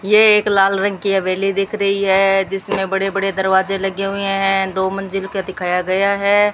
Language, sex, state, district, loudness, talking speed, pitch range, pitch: Hindi, female, Rajasthan, Bikaner, -17 LUFS, 200 wpm, 190-195 Hz, 195 Hz